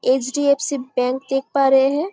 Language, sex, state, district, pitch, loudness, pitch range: Hindi, female, Chhattisgarh, Bastar, 270 Hz, -19 LUFS, 260-280 Hz